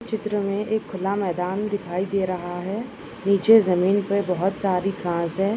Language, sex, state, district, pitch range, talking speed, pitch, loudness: Hindi, female, Rajasthan, Nagaur, 180-205 Hz, 170 wpm, 195 Hz, -23 LUFS